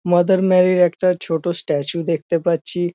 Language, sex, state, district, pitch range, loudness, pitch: Bengali, male, West Bengal, North 24 Parganas, 170-180 Hz, -18 LUFS, 175 Hz